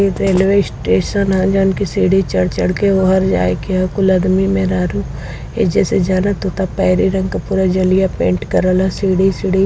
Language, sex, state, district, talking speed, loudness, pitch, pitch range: Hindi, female, Uttar Pradesh, Varanasi, 170 wpm, -15 LUFS, 190 Hz, 185-195 Hz